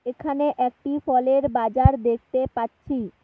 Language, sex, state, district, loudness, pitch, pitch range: Bengali, female, West Bengal, Alipurduar, -23 LUFS, 260 Hz, 245-280 Hz